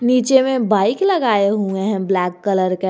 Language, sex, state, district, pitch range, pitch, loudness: Hindi, male, Jharkhand, Garhwa, 190-250 Hz, 205 Hz, -17 LUFS